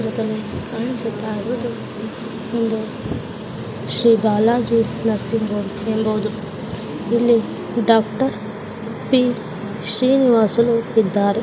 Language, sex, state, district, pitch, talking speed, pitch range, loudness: Kannada, female, Karnataka, Bellary, 225 Hz, 65 wpm, 215-235 Hz, -20 LUFS